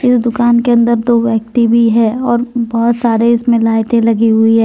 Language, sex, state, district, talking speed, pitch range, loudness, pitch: Hindi, female, Jharkhand, Deoghar, 205 wpm, 230-235 Hz, -12 LUFS, 235 Hz